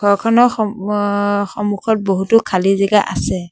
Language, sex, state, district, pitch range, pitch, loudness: Assamese, male, Assam, Sonitpur, 195-220 Hz, 205 Hz, -16 LUFS